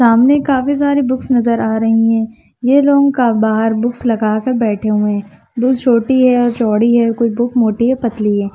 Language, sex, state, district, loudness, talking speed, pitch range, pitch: Hindi, female, Chhattisgarh, Sukma, -14 LUFS, 190 wpm, 220-255 Hz, 235 Hz